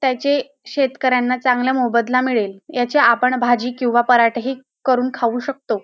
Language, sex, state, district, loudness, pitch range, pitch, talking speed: Marathi, female, Maharashtra, Dhule, -18 LUFS, 240-260 Hz, 250 Hz, 135 wpm